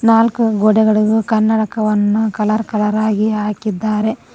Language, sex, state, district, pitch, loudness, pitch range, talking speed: Kannada, female, Karnataka, Koppal, 215 Hz, -15 LUFS, 210-220 Hz, 95 wpm